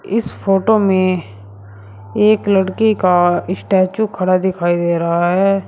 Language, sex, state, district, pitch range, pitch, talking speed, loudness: Hindi, male, Uttar Pradesh, Shamli, 175-195 Hz, 185 Hz, 125 wpm, -15 LUFS